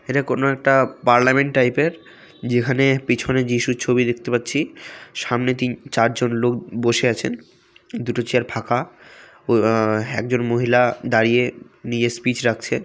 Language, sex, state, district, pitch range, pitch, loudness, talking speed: Bengali, male, West Bengal, Jalpaiguri, 120-130 Hz, 120 Hz, -19 LUFS, 135 wpm